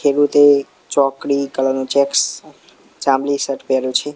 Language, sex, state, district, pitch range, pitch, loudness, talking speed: Gujarati, male, Gujarat, Gandhinagar, 135-140 Hz, 140 Hz, -17 LUFS, 130 wpm